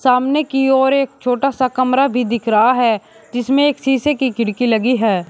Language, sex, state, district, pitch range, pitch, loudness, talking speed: Hindi, male, Uttar Pradesh, Shamli, 235-270 Hz, 255 Hz, -16 LUFS, 205 wpm